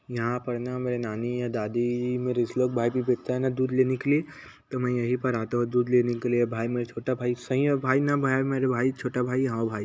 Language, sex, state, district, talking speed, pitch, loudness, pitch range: Hindi, male, Chhattisgarh, Korba, 295 wpm, 125 Hz, -27 LUFS, 120-130 Hz